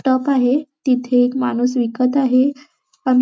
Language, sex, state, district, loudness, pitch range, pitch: Marathi, female, Maharashtra, Nagpur, -17 LUFS, 250-275 Hz, 260 Hz